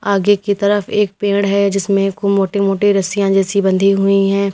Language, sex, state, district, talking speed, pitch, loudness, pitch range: Hindi, female, Uttar Pradesh, Lalitpur, 200 wpm, 200 Hz, -15 LUFS, 195-200 Hz